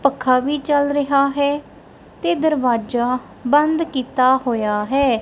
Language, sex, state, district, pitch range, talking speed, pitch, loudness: Punjabi, female, Punjab, Kapurthala, 250-290 Hz, 125 wpm, 275 Hz, -18 LUFS